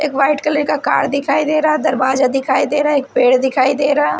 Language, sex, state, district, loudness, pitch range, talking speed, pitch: Hindi, female, Odisha, Sambalpur, -15 LUFS, 265-295 Hz, 240 wpm, 280 Hz